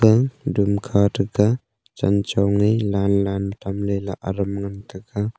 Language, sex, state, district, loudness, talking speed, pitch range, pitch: Wancho, male, Arunachal Pradesh, Longding, -21 LUFS, 155 wpm, 100-110 Hz, 100 Hz